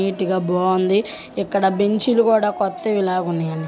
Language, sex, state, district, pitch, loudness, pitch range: Telugu, female, Andhra Pradesh, Guntur, 195 Hz, -19 LUFS, 185-210 Hz